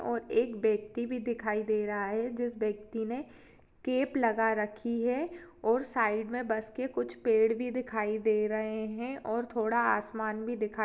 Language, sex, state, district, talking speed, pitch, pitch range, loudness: Hindi, female, Chhattisgarh, Kabirdham, 175 wpm, 225 Hz, 215-240 Hz, -32 LUFS